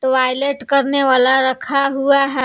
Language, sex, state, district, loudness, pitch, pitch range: Hindi, female, Jharkhand, Palamu, -15 LUFS, 270 Hz, 260-275 Hz